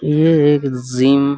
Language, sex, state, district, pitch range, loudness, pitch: Hindi, male, Bihar, Araria, 135-150 Hz, -14 LUFS, 140 Hz